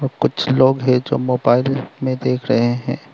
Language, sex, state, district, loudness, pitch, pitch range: Hindi, male, Arunachal Pradesh, Lower Dibang Valley, -17 LUFS, 130 Hz, 125-135 Hz